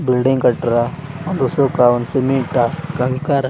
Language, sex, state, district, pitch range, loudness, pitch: Kannada, male, Karnataka, Gulbarga, 125-140 Hz, -17 LUFS, 130 Hz